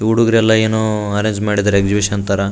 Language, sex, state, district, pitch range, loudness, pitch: Kannada, male, Karnataka, Raichur, 100-110 Hz, -15 LUFS, 105 Hz